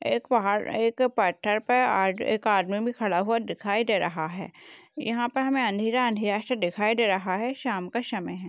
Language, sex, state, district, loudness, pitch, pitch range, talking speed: Hindi, female, Uttar Pradesh, Hamirpur, -26 LUFS, 220 Hz, 200-240 Hz, 205 wpm